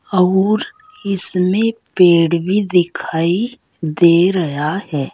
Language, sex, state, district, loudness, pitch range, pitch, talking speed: Hindi, female, Uttar Pradesh, Saharanpur, -16 LUFS, 170-205 Hz, 180 Hz, 95 wpm